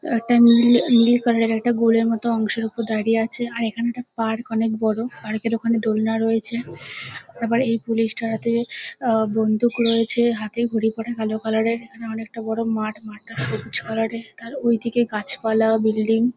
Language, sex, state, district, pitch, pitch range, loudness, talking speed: Bengali, female, West Bengal, North 24 Parganas, 230 Hz, 220-235 Hz, -21 LUFS, 190 wpm